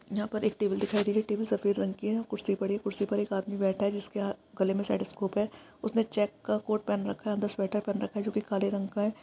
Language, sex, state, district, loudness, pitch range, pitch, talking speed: Hindi, female, Uttar Pradesh, Jalaun, -31 LUFS, 200-210 Hz, 205 Hz, 290 wpm